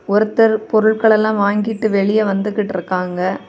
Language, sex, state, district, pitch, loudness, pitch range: Tamil, female, Tamil Nadu, Kanyakumari, 210 Hz, -16 LUFS, 195-220 Hz